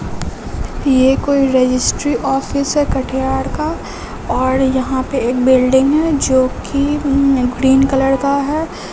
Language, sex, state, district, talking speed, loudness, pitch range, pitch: Hindi, female, Bihar, Katihar, 130 wpm, -15 LUFS, 260-280 Hz, 265 Hz